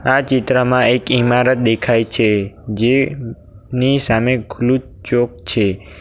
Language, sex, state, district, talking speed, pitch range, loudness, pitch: Gujarati, male, Gujarat, Valsad, 110 wpm, 110-125 Hz, -16 LUFS, 120 Hz